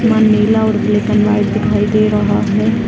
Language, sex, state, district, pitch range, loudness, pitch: Hindi, female, Bihar, Sitamarhi, 210-220 Hz, -13 LUFS, 215 Hz